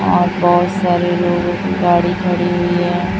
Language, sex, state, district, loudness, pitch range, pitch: Hindi, female, Chhattisgarh, Raipur, -15 LUFS, 175-180 Hz, 175 Hz